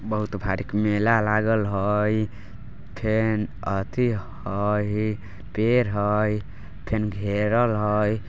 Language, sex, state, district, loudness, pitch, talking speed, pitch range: Bajjika, male, Bihar, Vaishali, -24 LUFS, 105 Hz, 95 wpm, 100-110 Hz